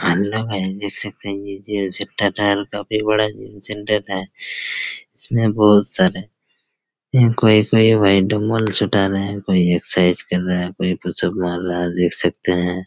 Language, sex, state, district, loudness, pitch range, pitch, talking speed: Hindi, male, Chhattisgarh, Raigarh, -18 LUFS, 90-105 Hz, 100 Hz, 170 wpm